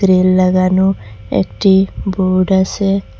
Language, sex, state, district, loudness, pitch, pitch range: Bengali, female, Assam, Hailakandi, -14 LUFS, 185 Hz, 185-195 Hz